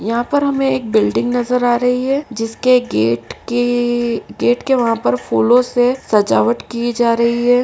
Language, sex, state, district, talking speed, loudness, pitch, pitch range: Hindi, female, Uttar Pradesh, Etah, 180 wpm, -16 LUFS, 240 Hz, 230-250 Hz